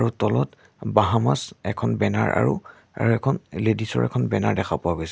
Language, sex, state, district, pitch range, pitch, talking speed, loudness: Assamese, male, Assam, Sonitpur, 85-115 Hz, 105 Hz, 175 wpm, -23 LUFS